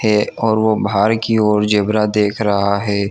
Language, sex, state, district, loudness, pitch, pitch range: Hindi, male, Jharkhand, Jamtara, -16 LUFS, 105 Hz, 105-110 Hz